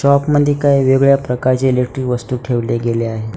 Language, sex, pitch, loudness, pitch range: Marathi, male, 130 Hz, -15 LUFS, 120-140 Hz